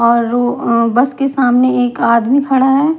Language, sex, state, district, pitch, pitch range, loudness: Hindi, female, Himachal Pradesh, Shimla, 250 Hz, 235-270 Hz, -13 LUFS